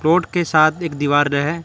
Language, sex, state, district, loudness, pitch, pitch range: Hindi, male, Karnataka, Bangalore, -17 LUFS, 155 Hz, 145-170 Hz